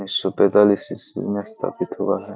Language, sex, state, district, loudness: Hindi, male, Bihar, Begusarai, -21 LUFS